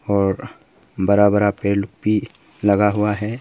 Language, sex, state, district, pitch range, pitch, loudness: Hindi, male, Arunachal Pradesh, Papum Pare, 100-105 Hz, 105 Hz, -19 LUFS